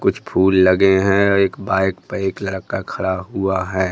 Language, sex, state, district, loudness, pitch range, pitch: Hindi, male, Madhya Pradesh, Katni, -18 LUFS, 95-100 Hz, 95 Hz